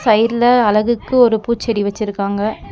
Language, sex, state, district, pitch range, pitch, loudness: Tamil, female, Tamil Nadu, Nilgiris, 210-235 Hz, 220 Hz, -15 LUFS